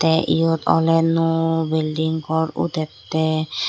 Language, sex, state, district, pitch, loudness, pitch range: Chakma, female, Tripura, Dhalai, 160 Hz, -20 LUFS, 160-165 Hz